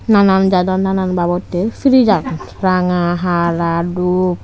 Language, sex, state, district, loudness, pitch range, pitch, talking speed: Chakma, female, Tripura, Unakoti, -15 LUFS, 175-190 Hz, 180 Hz, 120 wpm